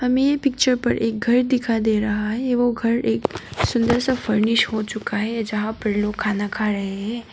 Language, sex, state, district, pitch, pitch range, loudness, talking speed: Hindi, female, Arunachal Pradesh, Papum Pare, 225 Hz, 215-245 Hz, -21 LUFS, 215 wpm